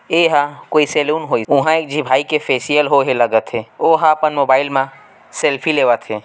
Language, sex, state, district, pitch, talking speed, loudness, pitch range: Hindi, male, Chhattisgarh, Raigarh, 145 Hz, 220 wpm, -15 LUFS, 135-155 Hz